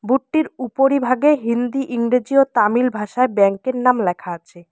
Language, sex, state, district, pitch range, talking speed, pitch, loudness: Bengali, female, West Bengal, Alipurduar, 210-270 Hz, 165 wpm, 250 Hz, -18 LUFS